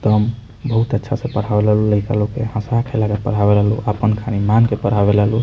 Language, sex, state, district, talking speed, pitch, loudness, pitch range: Bhojpuri, male, Bihar, Muzaffarpur, 265 wpm, 110 Hz, -17 LUFS, 105-115 Hz